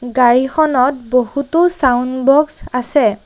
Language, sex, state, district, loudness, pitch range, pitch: Assamese, female, Assam, Sonitpur, -14 LUFS, 250-290 Hz, 255 Hz